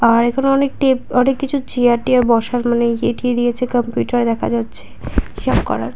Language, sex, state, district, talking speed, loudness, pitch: Bengali, female, West Bengal, Purulia, 170 wpm, -17 LUFS, 240 Hz